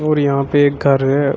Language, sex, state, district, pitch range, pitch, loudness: Hindi, male, Uttar Pradesh, Shamli, 140-145 Hz, 140 Hz, -15 LUFS